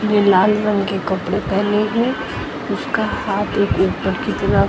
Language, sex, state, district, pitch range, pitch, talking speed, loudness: Hindi, female, Haryana, Jhajjar, 195-210 Hz, 205 Hz, 165 wpm, -18 LUFS